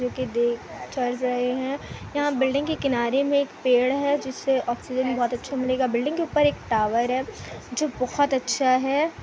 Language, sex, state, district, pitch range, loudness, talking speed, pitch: Hindi, female, Bihar, Kishanganj, 250-280 Hz, -24 LUFS, 170 wpm, 260 Hz